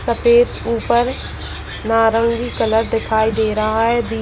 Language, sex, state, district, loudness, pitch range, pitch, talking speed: Hindi, female, Bihar, Jahanabad, -17 LUFS, 220-235 Hz, 225 Hz, 140 wpm